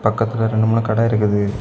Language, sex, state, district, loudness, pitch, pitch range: Tamil, male, Tamil Nadu, Kanyakumari, -18 LUFS, 110 Hz, 105-115 Hz